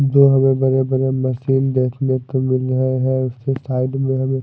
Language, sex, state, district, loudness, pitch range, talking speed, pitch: Hindi, male, Odisha, Malkangiri, -18 LUFS, 130-135 Hz, 190 wpm, 130 Hz